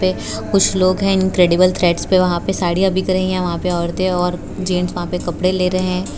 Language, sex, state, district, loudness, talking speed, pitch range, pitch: Hindi, female, Gujarat, Valsad, -17 LUFS, 235 wpm, 175-185 Hz, 180 Hz